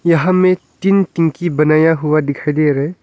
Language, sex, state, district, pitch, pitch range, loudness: Hindi, male, Arunachal Pradesh, Longding, 165 Hz, 150-185 Hz, -14 LUFS